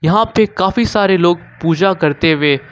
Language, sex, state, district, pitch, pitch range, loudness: Hindi, male, Jharkhand, Ranchi, 175 Hz, 160-200 Hz, -14 LUFS